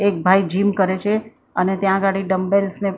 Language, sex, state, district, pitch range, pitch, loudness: Gujarati, female, Maharashtra, Mumbai Suburban, 190-200 Hz, 195 Hz, -19 LUFS